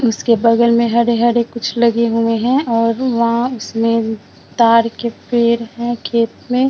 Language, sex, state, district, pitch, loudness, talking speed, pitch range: Hindi, female, Bihar, Vaishali, 235 Hz, -15 LUFS, 150 wpm, 230-235 Hz